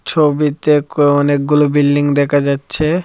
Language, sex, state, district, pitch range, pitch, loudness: Bengali, male, Tripura, Dhalai, 145-150 Hz, 145 Hz, -14 LUFS